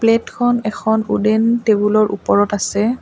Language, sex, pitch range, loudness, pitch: Assamese, female, 210-230 Hz, -16 LUFS, 220 Hz